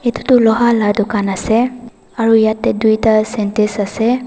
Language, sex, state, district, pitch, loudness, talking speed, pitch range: Nagamese, female, Nagaland, Dimapur, 220 Hz, -14 LUFS, 155 wpm, 210-235 Hz